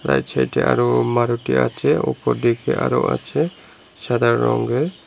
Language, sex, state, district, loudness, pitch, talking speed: Bengali, male, Tripura, Unakoti, -19 LUFS, 95 Hz, 130 wpm